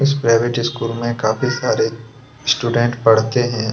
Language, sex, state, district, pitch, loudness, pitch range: Hindi, male, Chhattisgarh, Kabirdham, 120 Hz, -17 LUFS, 115-125 Hz